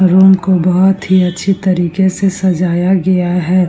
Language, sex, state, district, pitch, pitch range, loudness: Hindi, female, Bihar, Vaishali, 185 Hz, 180-190 Hz, -12 LUFS